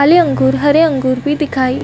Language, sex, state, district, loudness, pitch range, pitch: Hindi, female, Chhattisgarh, Bastar, -13 LUFS, 255-300 Hz, 280 Hz